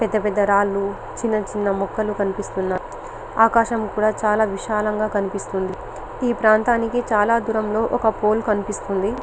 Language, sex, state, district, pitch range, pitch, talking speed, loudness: Telugu, female, Telangana, Karimnagar, 200-225 Hz, 215 Hz, 135 wpm, -21 LUFS